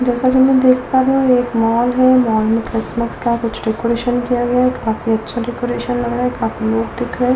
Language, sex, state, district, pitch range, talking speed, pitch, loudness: Hindi, female, Delhi, New Delhi, 230-250 Hz, 260 wpm, 245 Hz, -16 LUFS